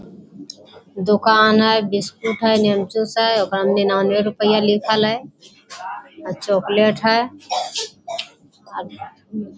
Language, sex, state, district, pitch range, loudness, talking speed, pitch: Hindi, female, Bihar, Jamui, 205-225 Hz, -18 LUFS, 90 wpm, 215 Hz